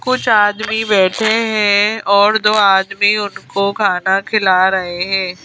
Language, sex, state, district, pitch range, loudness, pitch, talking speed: Hindi, female, Madhya Pradesh, Bhopal, 190-215 Hz, -14 LUFS, 205 Hz, 130 wpm